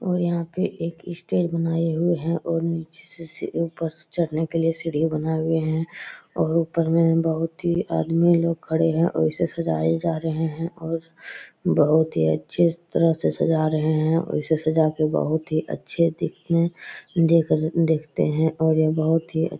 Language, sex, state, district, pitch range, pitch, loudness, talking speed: Hindi, male, Bihar, Araria, 160-170 Hz, 165 Hz, -23 LUFS, 175 wpm